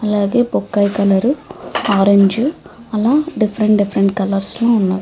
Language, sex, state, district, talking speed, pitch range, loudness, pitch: Telugu, female, Andhra Pradesh, Chittoor, 120 wpm, 200-235 Hz, -15 LUFS, 210 Hz